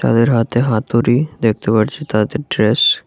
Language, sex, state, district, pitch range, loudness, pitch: Bengali, male, Tripura, West Tripura, 110-140 Hz, -15 LUFS, 115 Hz